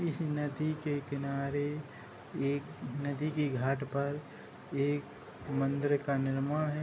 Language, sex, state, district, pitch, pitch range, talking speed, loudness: Hindi, male, Uttar Pradesh, Hamirpur, 145 Hz, 140-150 Hz, 125 wpm, -34 LUFS